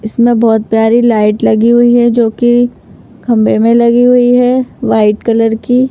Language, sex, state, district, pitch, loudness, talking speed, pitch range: Hindi, female, Madhya Pradesh, Bhopal, 235 Hz, -9 LUFS, 175 wpm, 225-240 Hz